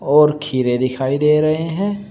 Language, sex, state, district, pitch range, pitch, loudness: Hindi, male, Uttar Pradesh, Shamli, 130-155 Hz, 150 Hz, -17 LUFS